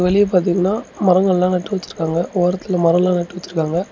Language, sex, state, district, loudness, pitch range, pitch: Tamil, male, Tamil Nadu, Namakkal, -17 LUFS, 175-185 Hz, 180 Hz